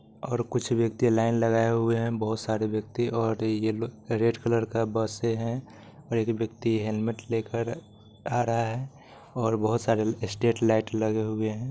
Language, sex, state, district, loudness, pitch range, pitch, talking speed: Maithili, male, Bihar, Supaul, -27 LUFS, 110-115 Hz, 115 Hz, 175 wpm